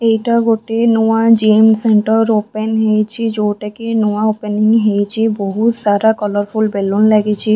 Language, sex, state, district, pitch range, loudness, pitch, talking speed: Odia, female, Odisha, Khordha, 210-225 Hz, -14 LUFS, 220 Hz, 135 wpm